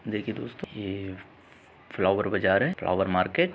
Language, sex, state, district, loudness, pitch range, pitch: Hindi, male, Uttar Pradesh, Muzaffarnagar, -27 LUFS, 90-100 Hz, 95 Hz